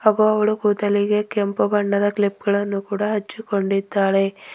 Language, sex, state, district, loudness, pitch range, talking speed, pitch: Kannada, female, Karnataka, Bidar, -20 LUFS, 200-210 Hz, 120 wpm, 205 Hz